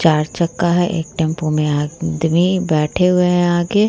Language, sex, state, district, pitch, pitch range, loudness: Hindi, female, Bihar, Vaishali, 170 Hz, 155-180 Hz, -17 LUFS